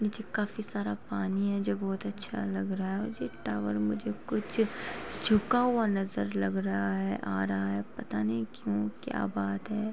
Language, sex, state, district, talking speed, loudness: Hindi, female, Uttar Pradesh, Varanasi, 90 wpm, -32 LUFS